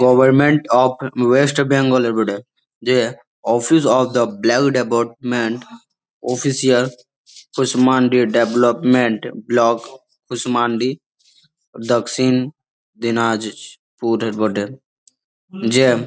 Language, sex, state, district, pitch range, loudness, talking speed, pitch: Bengali, male, West Bengal, Malda, 120-130 Hz, -17 LUFS, 75 wpm, 125 Hz